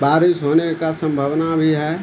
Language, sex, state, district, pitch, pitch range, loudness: Hindi, male, Bihar, Supaul, 160 Hz, 150-165 Hz, -18 LUFS